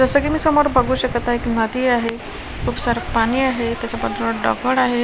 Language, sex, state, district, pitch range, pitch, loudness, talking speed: Marathi, female, Maharashtra, Washim, 230-260 Hz, 245 Hz, -19 LUFS, 215 wpm